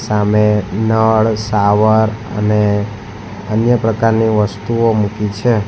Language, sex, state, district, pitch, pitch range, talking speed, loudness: Gujarati, male, Gujarat, Valsad, 110 Hz, 105-110 Hz, 95 wpm, -14 LUFS